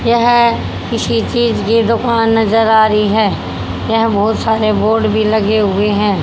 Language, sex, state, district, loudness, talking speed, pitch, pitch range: Hindi, female, Haryana, Jhajjar, -13 LUFS, 165 wpm, 220 Hz, 210-230 Hz